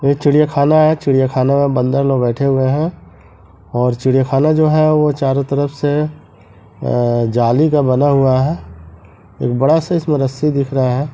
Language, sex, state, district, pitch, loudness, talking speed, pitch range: Hindi, male, Bihar, East Champaran, 135 Hz, -15 LUFS, 170 wpm, 120-145 Hz